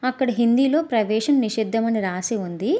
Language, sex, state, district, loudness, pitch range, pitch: Telugu, female, Andhra Pradesh, Visakhapatnam, -21 LUFS, 215-260 Hz, 230 Hz